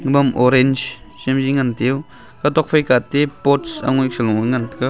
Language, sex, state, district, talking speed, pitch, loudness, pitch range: Wancho, male, Arunachal Pradesh, Longding, 160 wpm, 130 Hz, -17 LUFS, 125-140 Hz